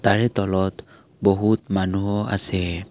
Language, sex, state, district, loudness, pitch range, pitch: Assamese, male, Assam, Kamrup Metropolitan, -22 LUFS, 95-105 Hz, 100 Hz